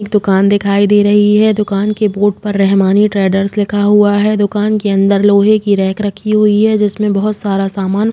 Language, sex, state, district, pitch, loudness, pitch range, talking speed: Hindi, female, Uttar Pradesh, Jalaun, 205 Hz, -12 LUFS, 200-210 Hz, 215 wpm